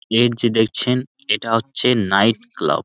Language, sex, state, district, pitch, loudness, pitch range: Bengali, male, West Bengal, Malda, 115 Hz, -18 LUFS, 110-125 Hz